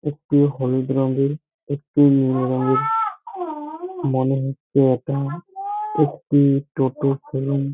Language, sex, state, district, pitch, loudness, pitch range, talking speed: Bengali, male, West Bengal, Jhargram, 140 Hz, -21 LUFS, 135-165 Hz, 95 wpm